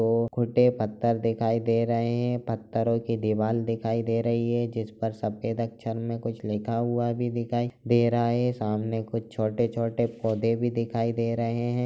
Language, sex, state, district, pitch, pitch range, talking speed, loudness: Hindi, male, Chhattisgarh, Raigarh, 115 Hz, 115-120 Hz, 175 wpm, -27 LUFS